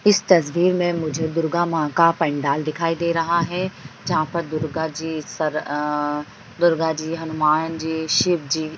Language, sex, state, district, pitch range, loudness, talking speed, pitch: Hindi, female, Uttar Pradesh, Hamirpur, 155-170 Hz, -21 LUFS, 170 wpm, 160 Hz